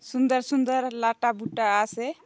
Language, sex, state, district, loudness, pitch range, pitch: Halbi, female, Chhattisgarh, Bastar, -25 LUFS, 230-260 Hz, 245 Hz